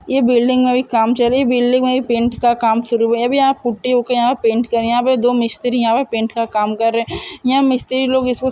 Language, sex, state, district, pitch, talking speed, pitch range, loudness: Hindi, male, Andhra Pradesh, Guntur, 245 Hz, 125 wpm, 230-255 Hz, -16 LUFS